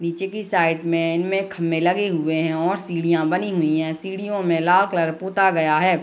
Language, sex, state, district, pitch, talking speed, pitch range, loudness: Hindi, female, Bihar, Gopalganj, 170 Hz, 240 wpm, 165-190 Hz, -21 LUFS